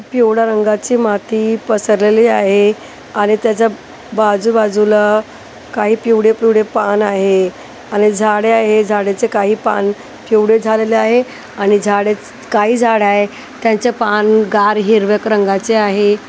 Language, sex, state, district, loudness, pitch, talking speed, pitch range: Marathi, female, Maharashtra, Gondia, -13 LUFS, 215 Hz, 125 wpm, 205-225 Hz